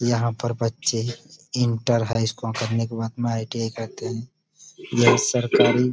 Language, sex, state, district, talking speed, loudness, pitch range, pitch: Hindi, male, Uttar Pradesh, Budaun, 160 wpm, -23 LUFS, 115-125 Hz, 120 Hz